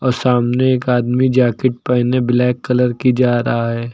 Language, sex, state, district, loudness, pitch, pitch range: Hindi, male, Uttar Pradesh, Lucknow, -15 LUFS, 125 Hz, 120-125 Hz